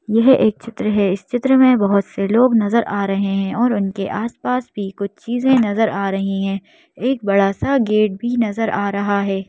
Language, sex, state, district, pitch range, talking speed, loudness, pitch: Hindi, female, Madhya Pradesh, Bhopal, 200-240 Hz, 210 wpm, -18 LUFS, 210 Hz